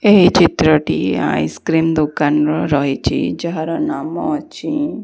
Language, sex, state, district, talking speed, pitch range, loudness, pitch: Odia, female, Odisha, Khordha, 105 wpm, 150-180 Hz, -16 LUFS, 160 Hz